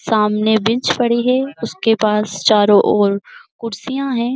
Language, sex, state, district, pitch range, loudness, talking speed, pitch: Hindi, female, Uttar Pradesh, Jyotiba Phule Nagar, 210-240 Hz, -16 LUFS, 135 wpm, 225 Hz